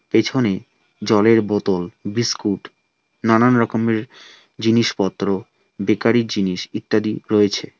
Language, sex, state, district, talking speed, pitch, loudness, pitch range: Bengali, male, West Bengal, Alipurduar, 85 wpm, 110 Hz, -19 LUFS, 100-115 Hz